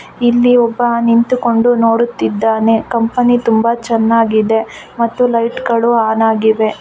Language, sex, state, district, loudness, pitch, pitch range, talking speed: Kannada, female, Karnataka, Shimoga, -13 LUFS, 230 Hz, 225-240 Hz, 105 wpm